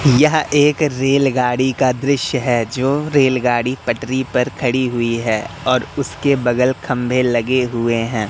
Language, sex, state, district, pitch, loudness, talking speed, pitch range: Hindi, male, Madhya Pradesh, Katni, 130 Hz, -17 LUFS, 145 wpm, 120-140 Hz